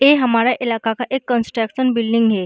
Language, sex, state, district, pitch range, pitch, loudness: Hindi, female, Uttar Pradesh, Muzaffarnagar, 225-255 Hz, 235 Hz, -18 LUFS